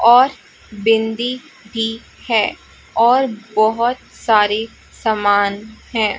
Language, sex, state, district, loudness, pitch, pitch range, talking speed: Hindi, female, Chhattisgarh, Raipur, -17 LUFS, 225 Hz, 215-240 Hz, 85 wpm